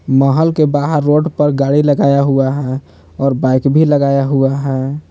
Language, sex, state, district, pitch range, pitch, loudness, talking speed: Hindi, male, Jharkhand, Palamu, 135-145 Hz, 140 Hz, -13 LUFS, 175 wpm